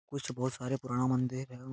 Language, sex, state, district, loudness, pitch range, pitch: Hindi, male, Bihar, Jahanabad, -34 LUFS, 125-130 Hz, 130 Hz